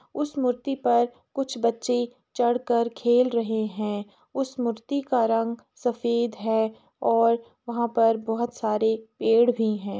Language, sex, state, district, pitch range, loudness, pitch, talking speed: Hindi, female, Uttar Pradesh, Etah, 225-245 Hz, -25 LUFS, 235 Hz, 145 wpm